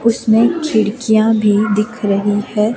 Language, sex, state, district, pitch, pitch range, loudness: Hindi, female, Himachal Pradesh, Shimla, 220 Hz, 210-230 Hz, -14 LUFS